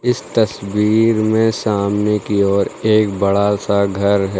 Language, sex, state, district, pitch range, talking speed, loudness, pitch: Hindi, male, Uttar Pradesh, Lucknow, 100-110 Hz, 150 wpm, -16 LUFS, 105 Hz